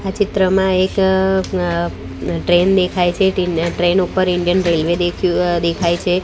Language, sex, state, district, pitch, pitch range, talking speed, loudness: Gujarati, female, Gujarat, Gandhinagar, 180 Hz, 170-190 Hz, 145 wpm, -16 LUFS